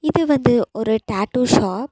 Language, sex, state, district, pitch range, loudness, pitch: Tamil, female, Tamil Nadu, Nilgiris, 220-290 Hz, -18 LUFS, 250 Hz